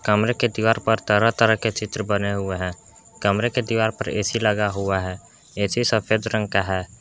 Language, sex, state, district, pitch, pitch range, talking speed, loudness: Hindi, male, Jharkhand, Palamu, 110 Hz, 100-115 Hz, 205 wpm, -22 LUFS